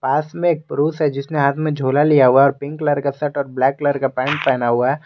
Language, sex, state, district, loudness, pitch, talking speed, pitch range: Hindi, male, Jharkhand, Garhwa, -18 LUFS, 140 Hz, 285 wpm, 135-150 Hz